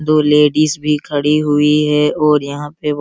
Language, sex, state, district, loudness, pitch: Hindi, male, Bihar, Araria, -14 LUFS, 150 Hz